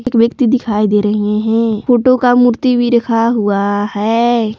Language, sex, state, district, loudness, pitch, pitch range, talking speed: Hindi, female, Jharkhand, Palamu, -13 LUFS, 230 Hz, 210-245 Hz, 155 wpm